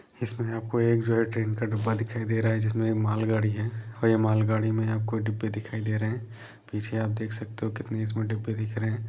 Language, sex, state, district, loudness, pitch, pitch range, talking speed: Hindi, male, Uttar Pradesh, Etah, -28 LUFS, 110 Hz, 110-115 Hz, 255 wpm